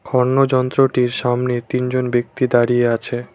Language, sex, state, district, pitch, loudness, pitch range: Bengali, male, West Bengal, Cooch Behar, 125 Hz, -17 LUFS, 120-130 Hz